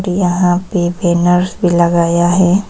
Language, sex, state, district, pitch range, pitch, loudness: Hindi, female, Arunachal Pradesh, Papum Pare, 175-180 Hz, 175 Hz, -13 LUFS